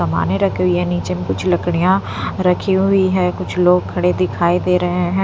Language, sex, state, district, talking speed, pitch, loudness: Hindi, female, Punjab, Pathankot, 205 wpm, 175 Hz, -17 LUFS